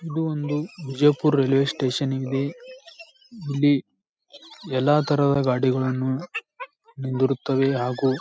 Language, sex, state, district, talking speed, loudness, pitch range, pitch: Kannada, male, Karnataka, Bijapur, 90 wpm, -23 LUFS, 135-165 Hz, 140 Hz